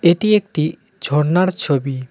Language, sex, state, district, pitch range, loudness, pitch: Bengali, male, West Bengal, Cooch Behar, 140-180 Hz, -17 LUFS, 155 Hz